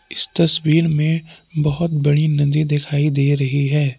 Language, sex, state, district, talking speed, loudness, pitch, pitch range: Hindi, male, Jharkhand, Palamu, 150 wpm, -17 LUFS, 150 Hz, 145-155 Hz